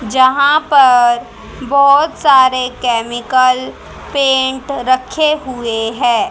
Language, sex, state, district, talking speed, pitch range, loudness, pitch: Hindi, female, Haryana, Charkhi Dadri, 85 wpm, 240-280 Hz, -12 LUFS, 260 Hz